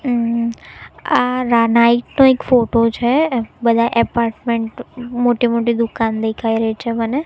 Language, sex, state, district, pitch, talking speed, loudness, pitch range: Gujarati, female, Gujarat, Gandhinagar, 235 Hz, 140 wpm, -16 LUFS, 230-245 Hz